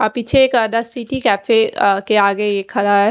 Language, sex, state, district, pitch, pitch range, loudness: Hindi, female, Odisha, Khordha, 220 Hz, 200-240 Hz, -15 LUFS